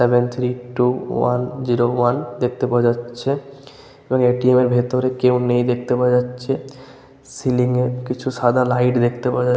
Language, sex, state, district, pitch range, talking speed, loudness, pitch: Bengali, male, West Bengal, Malda, 125-130 Hz, 155 wpm, -19 LUFS, 125 Hz